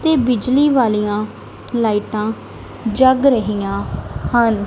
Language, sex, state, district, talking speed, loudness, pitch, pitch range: Punjabi, female, Punjab, Kapurthala, 90 wpm, -17 LUFS, 230 Hz, 210-260 Hz